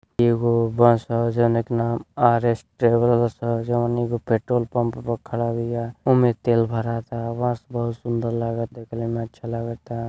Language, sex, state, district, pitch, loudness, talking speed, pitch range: Bhojpuri, male, Uttar Pradesh, Deoria, 115 Hz, -22 LUFS, 165 wpm, 115-120 Hz